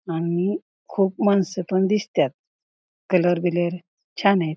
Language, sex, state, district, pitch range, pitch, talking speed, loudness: Marathi, female, Maharashtra, Pune, 175-200 Hz, 185 Hz, 120 wpm, -22 LUFS